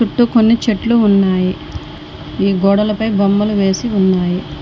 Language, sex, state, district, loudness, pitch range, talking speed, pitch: Telugu, female, Telangana, Mahabubabad, -14 LUFS, 195-225 Hz, 115 wpm, 205 Hz